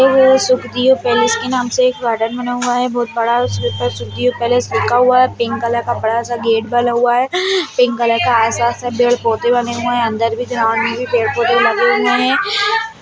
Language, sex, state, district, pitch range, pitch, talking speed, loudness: Hindi, female, Bihar, Jahanabad, 235-250 Hz, 245 Hz, 205 wpm, -15 LUFS